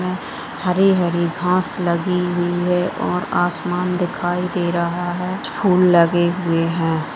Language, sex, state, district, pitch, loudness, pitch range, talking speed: Hindi, female, Bihar, Gaya, 180 Hz, -19 LUFS, 175-180 Hz, 125 wpm